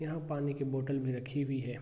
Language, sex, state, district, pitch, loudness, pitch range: Hindi, male, Bihar, Araria, 140 Hz, -35 LUFS, 130-145 Hz